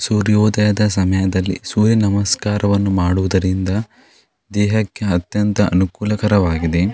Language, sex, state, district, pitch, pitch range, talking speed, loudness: Kannada, male, Karnataka, Dakshina Kannada, 100 Hz, 95-105 Hz, 70 wpm, -17 LUFS